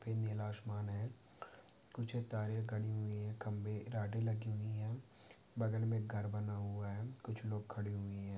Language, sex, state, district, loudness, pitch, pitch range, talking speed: Hindi, male, Maharashtra, Dhule, -42 LUFS, 110 Hz, 105-110 Hz, 170 wpm